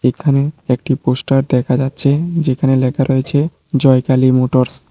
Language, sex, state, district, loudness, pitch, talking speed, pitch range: Bengali, male, Tripura, West Tripura, -15 LUFS, 135 Hz, 135 wpm, 130-140 Hz